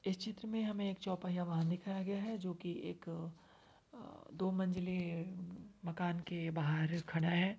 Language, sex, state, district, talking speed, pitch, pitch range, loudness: Hindi, female, Uttar Pradesh, Varanasi, 165 wpm, 180 Hz, 170-195 Hz, -40 LUFS